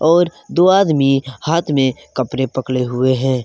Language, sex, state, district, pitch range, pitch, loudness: Hindi, male, Jharkhand, Garhwa, 130-160 Hz, 135 Hz, -16 LUFS